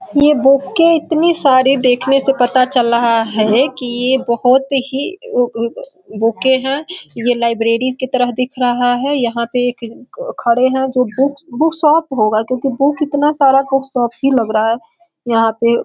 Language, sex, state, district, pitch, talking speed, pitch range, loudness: Hindi, female, Bihar, Sitamarhi, 255 Hz, 175 wpm, 235-280 Hz, -14 LUFS